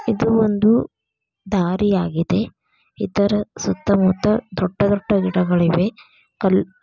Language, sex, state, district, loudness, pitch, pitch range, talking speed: Kannada, female, Karnataka, Dharwad, -19 LUFS, 200 Hz, 185-210 Hz, 70 wpm